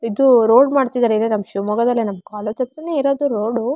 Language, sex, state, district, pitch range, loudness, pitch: Kannada, female, Karnataka, Shimoga, 215-270 Hz, -17 LUFS, 235 Hz